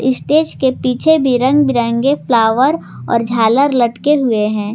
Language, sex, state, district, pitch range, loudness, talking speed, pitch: Hindi, female, Jharkhand, Garhwa, 235-280 Hz, -14 LUFS, 150 wpm, 255 Hz